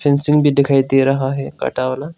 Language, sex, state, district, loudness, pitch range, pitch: Hindi, male, Arunachal Pradesh, Longding, -15 LUFS, 135-145 Hz, 140 Hz